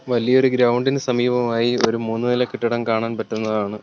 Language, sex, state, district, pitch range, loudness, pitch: Malayalam, male, Kerala, Kollam, 115-125 Hz, -20 LUFS, 120 Hz